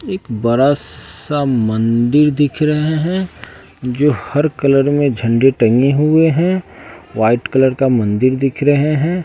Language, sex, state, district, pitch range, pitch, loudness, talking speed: Hindi, male, Bihar, West Champaran, 120-150 Hz, 140 Hz, -14 LUFS, 145 wpm